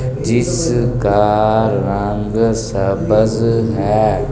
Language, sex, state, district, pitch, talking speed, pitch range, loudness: Hindi, male, Delhi, New Delhi, 110 Hz, 55 wpm, 105-120 Hz, -15 LUFS